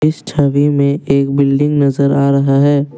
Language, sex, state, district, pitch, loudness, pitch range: Hindi, male, Assam, Kamrup Metropolitan, 140 Hz, -13 LUFS, 140-145 Hz